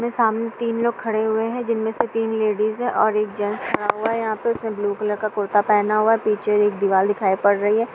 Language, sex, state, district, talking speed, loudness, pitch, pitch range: Hindi, female, Bihar, Kishanganj, 240 wpm, -21 LUFS, 215 Hz, 210-225 Hz